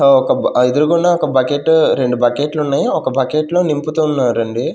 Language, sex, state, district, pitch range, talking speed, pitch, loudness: Telugu, male, Andhra Pradesh, Manyam, 130-155 Hz, 150 wpm, 145 Hz, -15 LUFS